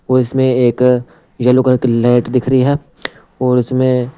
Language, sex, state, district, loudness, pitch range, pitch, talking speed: Hindi, male, Punjab, Pathankot, -14 LUFS, 125-130 Hz, 125 Hz, 170 wpm